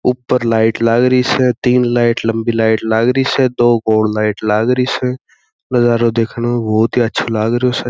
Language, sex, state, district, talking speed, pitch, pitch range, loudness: Marwari, male, Rajasthan, Churu, 175 wpm, 120 Hz, 110-125 Hz, -14 LUFS